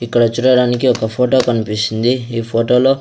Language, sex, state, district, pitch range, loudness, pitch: Telugu, male, Andhra Pradesh, Sri Satya Sai, 115-125 Hz, -15 LUFS, 120 Hz